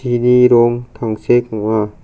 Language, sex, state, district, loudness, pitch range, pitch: Garo, male, Meghalaya, South Garo Hills, -14 LUFS, 110-120 Hz, 120 Hz